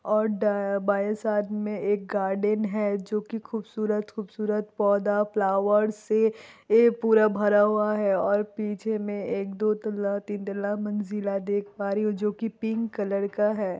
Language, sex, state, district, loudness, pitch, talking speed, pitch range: Hindi, female, Bihar, Kishanganj, -26 LUFS, 210 Hz, 165 wpm, 205-215 Hz